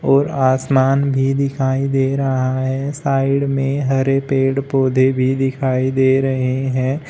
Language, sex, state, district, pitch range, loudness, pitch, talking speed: Hindi, male, Uttar Pradesh, Shamli, 130-135 Hz, -17 LUFS, 135 Hz, 145 wpm